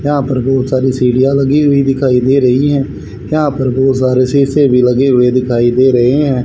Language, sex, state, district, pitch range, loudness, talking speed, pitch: Hindi, male, Haryana, Rohtak, 125-140 Hz, -11 LUFS, 205 wpm, 130 Hz